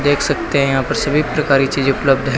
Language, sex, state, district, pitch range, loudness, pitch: Hindi, male, Rajasthan, Bikaner, 135-145 Hz, -16 LUFS, 140 Hz